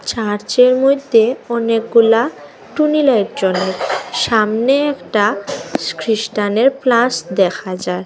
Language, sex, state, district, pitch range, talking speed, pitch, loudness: Bengali, female, Assam, Hailakandi, 205-255 Hz, 105 wpm, 230 Hz, -15 LUFS